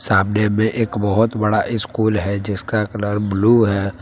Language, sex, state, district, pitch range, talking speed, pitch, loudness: Hindi, male, Jharkhand, Palamu, 100-110 Hz, 165 wpm, 105 Hz, -18 LUFS